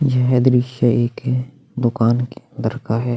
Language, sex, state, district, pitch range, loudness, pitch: Hindi, male, Chhattisgarh, Sukma, 120-130 Hz, -19 LUFS, 125 Hz